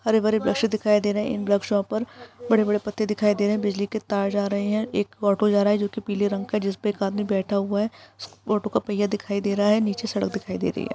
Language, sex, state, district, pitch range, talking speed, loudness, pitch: Maithili, female, Bihar, Araria, 200-215 Hz, 290 wpm, -24 LUFS, 210 Hz